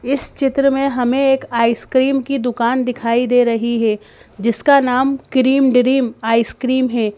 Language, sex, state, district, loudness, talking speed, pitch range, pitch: Hindi, female, Madhya Pradesh, Bhopal, -15 LUFS, 150 wpm, 235-270 Hz, 250 Hz